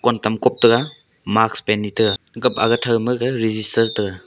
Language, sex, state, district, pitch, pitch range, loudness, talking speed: Wancho, male, Arunachal Pradesh, Longding, 115 Hz, 105-120 Hz, -18 LUFS, 170 wpm